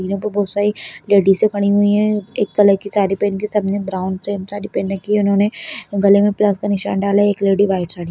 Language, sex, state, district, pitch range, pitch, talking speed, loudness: Kumaoni, female, Uttarakhand, Tehri Garhwal, 195-205 Hz, 200 Hz, 235 wpm, -17 LUFS